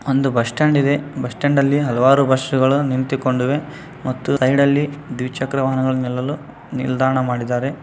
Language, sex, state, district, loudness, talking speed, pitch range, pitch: Kannada, male, Karnataka, Bijapur, -18 LUFS, 125 wpm, 130-145 Hz, 135 Hz